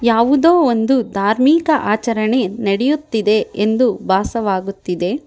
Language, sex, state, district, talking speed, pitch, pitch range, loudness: Kannada, female, Karnataka, Bangalore, 80 wpm, 230 Hz, 205-265 Hz, -16 LUFS